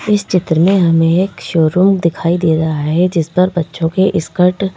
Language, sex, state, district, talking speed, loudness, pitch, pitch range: Hindi, female, Madhya Pradesh, Bhopal, 200 wpm, -13 LUFS, 175 Hz, 165-185 Hz